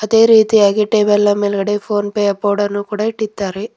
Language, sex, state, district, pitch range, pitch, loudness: Kannada, female, Karnataka, Bidar, 205-215 Hz, 210 Hz, -14 LUFS